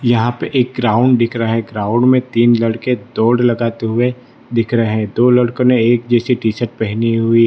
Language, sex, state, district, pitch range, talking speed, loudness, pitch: Hindi, male, Gujarat, Valsad, 115-125 Hz, 210 wpm, -15 LUFS, 120 Hz